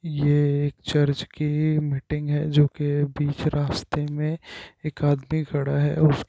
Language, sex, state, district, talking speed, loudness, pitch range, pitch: Hindi, male, Uttarakhand, Tehri Garhwal, 160 wpm, -24 LUFS, 145-150 Hz, 145 Hz